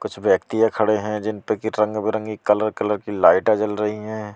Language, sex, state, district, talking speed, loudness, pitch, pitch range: Hindi, male, Delhi, New Delhi, 205 wpm, -21 LUFS, 105 Hz, 105-110 Hz